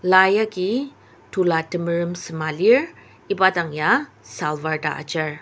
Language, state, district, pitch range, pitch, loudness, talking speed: Ao, Nagaland, Dimapur, 155-200 Hz, 175 Hz, -21 LUFS, 130 wpm